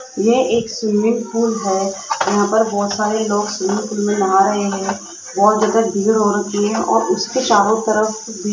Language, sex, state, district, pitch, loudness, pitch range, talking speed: Hindi, female, Rajasthan, Jaipur, 210 Hz, -17 LUFS, 200-220 Hz, 195 wpm